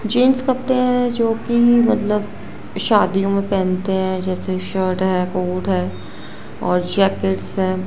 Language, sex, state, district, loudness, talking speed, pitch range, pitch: Hindi, female, Gujarat, Gandhinagar, -18 LUFS, 130 wpm, 185-230 Hz, 190 Hz